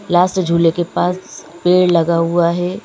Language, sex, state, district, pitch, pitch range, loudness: Hindi, female, Madhya Pradesh, Bhopal, 175 Hz, 170-180 Hz, -15 LUFS